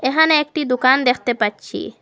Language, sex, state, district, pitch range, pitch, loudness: Bengali, female, Assam, Hailakandi, 245-295 Hz, 260 Hz, -16 LUFS